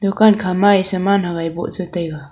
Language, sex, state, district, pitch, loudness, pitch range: Wancho, female, Arunachal Pradesh, Longding, 185 Hz, -17 LUFS, 170-200 Hz